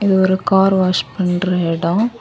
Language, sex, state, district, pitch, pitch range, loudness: Tamil, female, Tamil Nadu, Kanyakumari, 185 Hz, 180-195 Hz, -16 LUFS